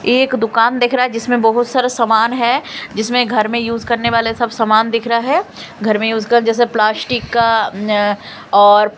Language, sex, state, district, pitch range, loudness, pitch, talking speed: Hindi, female, Delhi, New Delhi, 220-240 Hz, -14 LUFS, 230 Hz, 200 wpm